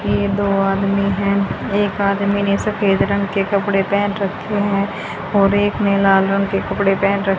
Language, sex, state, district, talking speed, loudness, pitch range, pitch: Hindi, female, Haryana, Charkhi Dadri, 185 wpm, -17 LUFS, 195-200 Hz, 200 Hz